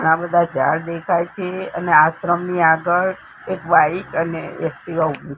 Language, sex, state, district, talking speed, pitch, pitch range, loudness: Gujarati, female, Gujarat, Gandhinagar, 145 wpm, 170 Hz, 160-175 Hz, -18 LUFS